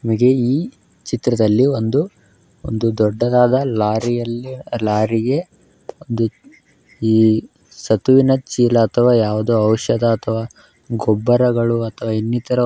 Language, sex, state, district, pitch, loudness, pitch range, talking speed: Kannada, male, Karnataka, Belgaum, 120 Hz, -17 LUFS, 110-125 Hz, 90 wpm